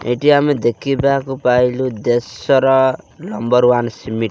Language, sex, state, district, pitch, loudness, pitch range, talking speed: Odia, male, Odisha, Malkangiri, 125 Hz, -15 LUFS, 120-135 Hz, 125 wpm